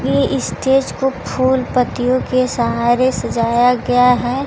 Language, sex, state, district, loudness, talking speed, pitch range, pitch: Hindi, female, Bihar, Kaimur, -16 LUFS, 135 wpm, 245-260 Hz, 250 Hz